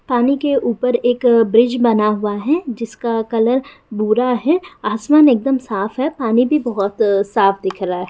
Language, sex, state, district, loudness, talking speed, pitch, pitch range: Hindi, female, Bihar, Jamui, -16 LUFS, 175 wpm, 235 Hz, 215-255 Hz